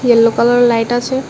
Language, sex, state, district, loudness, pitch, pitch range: Bengali, female, Tripura, West Tripura, -13 LUFS, 240 Hz, 235-245 Hz